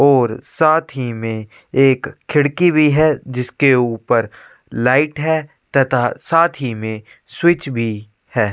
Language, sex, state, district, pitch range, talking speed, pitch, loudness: Hindi, male, Chhattisgarh, Korba, 115-155 Hz, 135 wpm, 135 Hz, -17 LUFS